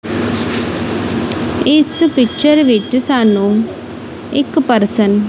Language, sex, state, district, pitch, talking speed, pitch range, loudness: Punjabi, female, Punjab, Kapurthala, 255 Hz, 80 wpm, 215-295 Hz, -14 LUFS